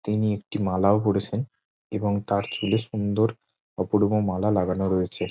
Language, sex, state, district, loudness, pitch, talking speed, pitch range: Bengali, male, West Bengal, Jhargram, -25 LUFS, 105 Hz, 135 wpm, 95-105 Hz